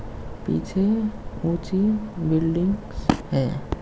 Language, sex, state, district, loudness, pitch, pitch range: Hindi, male, Haryana, Jhajjar, -24 LUFS, 180 Hz, 160-210 Hz